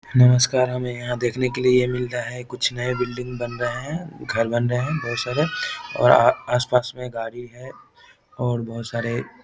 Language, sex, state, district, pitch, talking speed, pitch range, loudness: Hindi, male, Bihar, Samastipur, 125 Hz, 205 wpm, 120-125 Hz, -22 LUFS